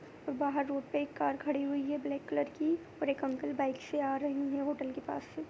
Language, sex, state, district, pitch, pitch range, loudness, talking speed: Hindi, female, Bihar, Begusarai, 285 Hz, 275-290 Hz, -35 LUFS, 250 wpm